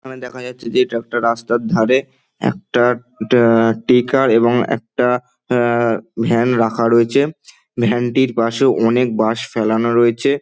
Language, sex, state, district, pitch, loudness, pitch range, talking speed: Bengali, male, West Bengal, Dakshin Dinajpur, 120 Hz, -16 LUFS, 115-125 Hz, 140 wpm